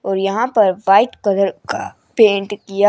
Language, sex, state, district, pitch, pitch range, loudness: Hindi, female, Chandigarh, Chandigarh, 200 Hz, 195-210 Hz, -16 LUFS